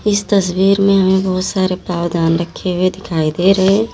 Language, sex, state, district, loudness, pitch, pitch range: Hindi, female, Uttar Pradesh, Lalitpur, -15 LUFS, 185 Hz, 180-195 Hz